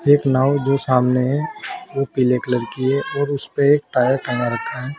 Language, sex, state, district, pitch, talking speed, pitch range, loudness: Hindi, male, Uttar Pradesh, Saharanpur, 135 Hz, 215 wpm, 125-145 Hz, -19 LUFS